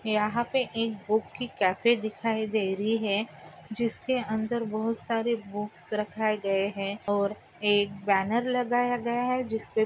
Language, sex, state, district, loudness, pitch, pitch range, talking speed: Hindi, female, Maharashtra, Pune, -28 LUFS, 220 Hz, 205-235 Hz, 150 wpm